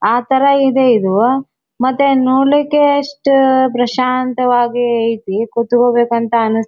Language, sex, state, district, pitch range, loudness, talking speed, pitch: Kannada, female, Karnataka, Dharwad, 235-270 Hz, -13 LUFS, 110 wpm, 255 Hz